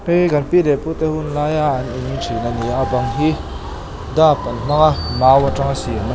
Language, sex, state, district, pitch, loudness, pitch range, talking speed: Mizo, male, Mizoram, Aizawl, 140 Hz, -17 LUFS, 125-155 Hz, 245 wpm